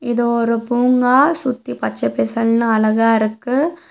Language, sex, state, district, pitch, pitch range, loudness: Tamil, female, Tamil Nadu, Nilgiris, 235 Hz, 225-250 Hz, -16 LUFS